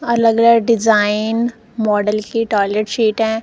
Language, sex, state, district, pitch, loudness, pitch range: Hindi, female, Punjab, Kapurthala, 225 Hz, -15 LUFS, 210-230 Hz